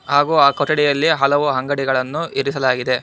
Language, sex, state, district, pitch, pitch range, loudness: Kannada, male, Karnataka, Bangalore, 140 Hz, 135-150 Hz, -17 LUFS